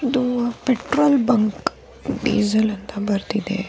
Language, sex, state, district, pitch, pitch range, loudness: Kannada, female, Karnataka, Dharwad, 220 Hz, 205-255 Hz, -21 LUFS